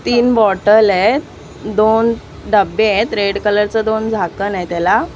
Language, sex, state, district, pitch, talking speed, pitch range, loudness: Marathi, female, Maharashtra, Mumbai Suburban, 210 Hz, 150 wpm, 200-220 Hz, -14 LUFS